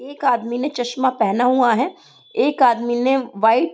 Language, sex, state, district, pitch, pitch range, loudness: Hindi, female, Uttar Pradesh, Gorakhpur, 250 Hz, 235-270 Hz, -18 LUFS